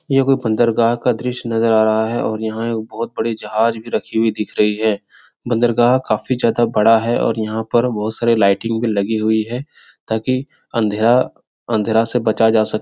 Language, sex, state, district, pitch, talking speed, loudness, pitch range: Hindi, male, Bihar, Supaul, 115 Hz, 200 wpm, -17 LUFS, 110-120 Hz